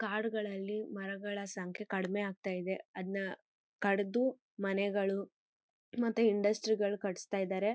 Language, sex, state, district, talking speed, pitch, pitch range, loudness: Kannada, female, Karnataka, Mysore, 110 wpm, 200 Hz, 195-210 Hz, -36 LUFS